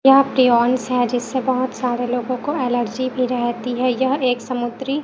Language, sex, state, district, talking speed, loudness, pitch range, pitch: Hindi, female, Chhattisgarh, Raipur, 165 wpm, -19 LUFS, 245-260 Hz, 250 Hz